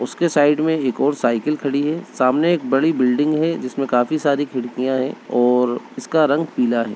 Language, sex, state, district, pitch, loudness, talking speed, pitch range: Hindi, male, Bihar, Begusarai, 140 Hz, -19 LUFS, 200 wpm, 125-155 Hz